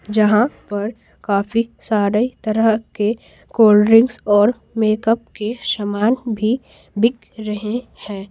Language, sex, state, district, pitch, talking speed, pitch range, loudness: Hindi, female, Bihar, Patna, 215 Hz, 115 wpm, 210-230 Hz, -18 LUFS